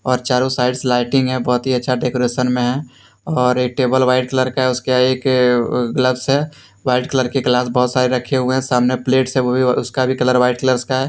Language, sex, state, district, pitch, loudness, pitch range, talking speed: Hindi, male, Jharkhand, Deoghar, 125 Hz, -17 LUFS, 125-130 Hz, 240 wpm